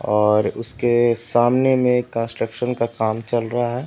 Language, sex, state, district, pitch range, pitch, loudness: Hindi, male, Uttar Pradesh, Etah, 115-125 Hz, 120 Hz, -20 LUFS